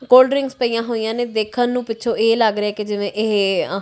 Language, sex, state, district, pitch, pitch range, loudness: Punjabi, female, Punjab, Kapurthala, 225 Hz, 210-245 Hz, -18 LUFS